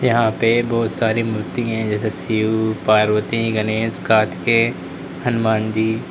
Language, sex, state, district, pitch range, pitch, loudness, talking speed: Hindi, male, Uttar Pradesh, Lalitpur, 105-115 Hz, 110 Hz, -18 LUFS, 130 wpm